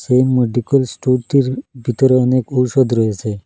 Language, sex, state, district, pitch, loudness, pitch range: Bengali, male, Assam, Hailakandi, 125 Hz, -16 LUFS, 120-130 Hz